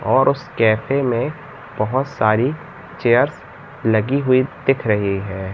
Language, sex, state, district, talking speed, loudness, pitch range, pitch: Hindi, male, Madhya Pradesh, Katni, 130 wpm, -19 LUFS, 105-135 Hz, 120 Hz